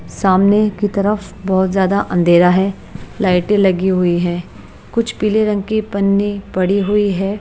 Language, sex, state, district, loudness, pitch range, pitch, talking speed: Hindi, female, Bihar, West Champaran, -15 LUFS, 190-205 Hz, 195 Hz, 155 wpm